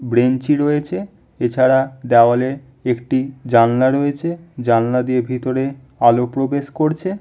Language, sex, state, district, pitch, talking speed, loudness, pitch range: Bengali, male, West Bengal, Malda, 130 Hz, 115 wpm, -17 LUFS, 125-140 Hz